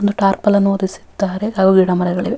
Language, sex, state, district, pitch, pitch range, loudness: Kannada, female, Karnataka, Dharwad, 195 Hz, 190-205 Hz, -16 LUFS